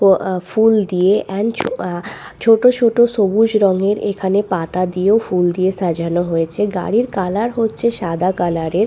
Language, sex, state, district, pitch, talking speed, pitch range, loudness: Bengali, female, West Bengal, Purulia, 195 Hz, 155 wpm, 180-220 Hz, -16 LUFS